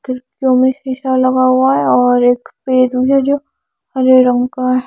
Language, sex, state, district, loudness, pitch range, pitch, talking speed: Hindi, female, Haryana, Charkhi Dadri, -13 LUFS, 255-260 Hz, 255 Hz, 170 wpm